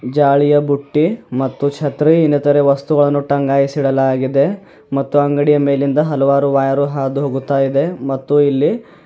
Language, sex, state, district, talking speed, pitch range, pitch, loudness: Kannada, male, Karnataka, Bidar, 125 wpm, 140-145 Hz, 140 Hz, -15 LUFS